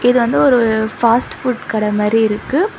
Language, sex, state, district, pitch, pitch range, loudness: Tamil, female, Tamil Nadu, Chennai, 230 Hz, 220-250 Hz, -15 LUFS